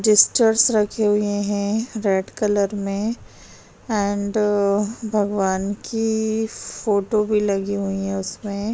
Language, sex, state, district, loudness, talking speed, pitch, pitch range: Hindi, female, Bihar, Kishanganj, -21 LUFS, 115 wpm, 210 Hz, 200-220 Hz